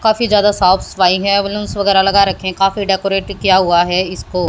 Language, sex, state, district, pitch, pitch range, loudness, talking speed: Hindi, female, Haryana, Jhajjar, 195 Hz, 185-200 Hz, -14 LUFS, 215 wpm